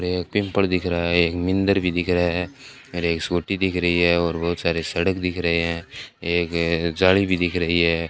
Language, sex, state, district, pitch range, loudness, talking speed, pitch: Hindi, male, Rajasthan, Bikaner, 85-95 Hz, -21 LUFS, 205 wpm, 85 Hz